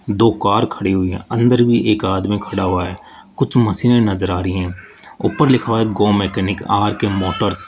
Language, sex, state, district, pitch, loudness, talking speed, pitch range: Hindi, male, Rajasthan, Jaipur, 105 Hz, -17 LUFS, 205 wpm, 95-115 Hz